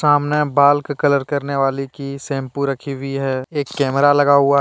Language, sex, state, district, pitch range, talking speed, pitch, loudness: Hindi, male, Jharkhand, Deoghar, 135-145 Hz, 210 wpm, 140 Hz, -18 LUFS